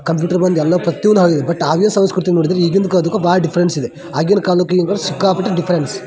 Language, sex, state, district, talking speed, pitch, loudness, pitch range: Kannada, male, Karnataka, Dharwad, 200 wpm, 180 Hz, -15 LUFS, 170-190 Hz